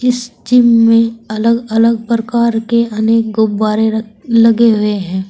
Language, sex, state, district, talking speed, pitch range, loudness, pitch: Hindi, female, Uttar Pradesh, Saharanpur, 145 wpm, 220-235 Hz, -12 LUFS, 230 Hz